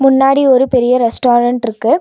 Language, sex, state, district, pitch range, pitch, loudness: Tamil, female, Tamil Nadu, Nilgiris, 240-270 Hz, 250 Hz, -12 LUFS